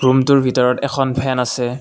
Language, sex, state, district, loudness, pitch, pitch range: Assamese, male, Assam, Kamrup Metropolitan, -16 LUFS, 130 Hz, 125-135 Hz